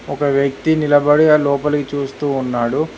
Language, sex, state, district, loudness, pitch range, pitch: Telugu, male, Telangana, Hyderabad, -16 LUFS, 140-150 Hz, 145 Hz